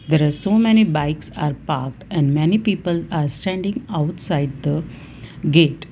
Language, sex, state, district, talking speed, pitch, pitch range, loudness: English, female, Gujarat, Valsad, 150 wpm, 155 Hz, 150-185 Hz, -19 LUFS